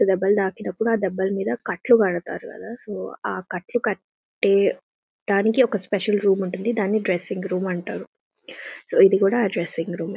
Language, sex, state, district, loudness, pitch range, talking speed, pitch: Telugu, female, Telangana, Nalgonda, -22 LUFS, 185-215 Hz, 165 wpm, 195 Hz